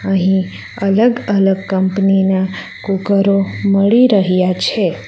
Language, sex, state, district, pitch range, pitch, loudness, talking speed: Gujarati, female, Gujarat, Valsad, 190-200 Hz, 195 Hz, -14 LUFS, 95 wpm